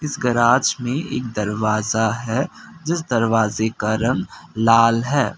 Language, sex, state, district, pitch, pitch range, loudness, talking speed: Hindi, male, Assam, Kamrup Metropolitan, 115 Hz, 110-130 Hz, -19 LUFS, 125 wpm